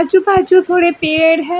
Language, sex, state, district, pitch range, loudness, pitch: Hindi, female, Karnataka, Bangalore, 325-370 Hz, -12 LUFS, 350 Hz